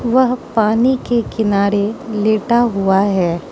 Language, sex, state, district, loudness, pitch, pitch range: Hindi, female, Mizoram, Aizawl, -16 LUFS, 215 Hz, 200-240 Hz